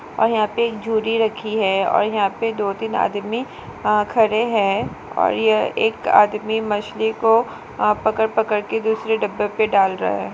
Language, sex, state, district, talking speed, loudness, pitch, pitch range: Hindi, female, Maharashtra, Solapur, 165 wpm, -19 LUFS, 220 Hz, 210-225 Hz